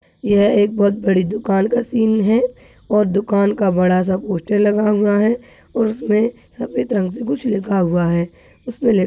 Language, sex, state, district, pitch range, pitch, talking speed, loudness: Hindi, male, Rajasthan, Nagaur, 195-225 Hz, 205 Hz, 190 wpm, -17 LUFS